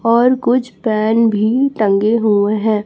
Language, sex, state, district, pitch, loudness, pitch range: Hindi, female, Chhattisgarh, Raipur, 225 Hz, -14 LUFS, 215-240 Hz